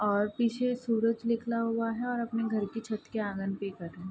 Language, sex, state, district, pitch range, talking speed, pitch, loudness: Hindi, female, Bihar, Darbhanga, 205-230 Hz, 235 wpm, 225 Hz, -31 LUFS